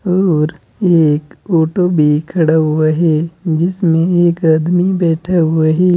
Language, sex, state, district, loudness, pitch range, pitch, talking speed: Hindi, male, Uttar Pradesh, Saharanpur, -13 LUFS, 160-180 Hz, 165 Hz, 130 wpm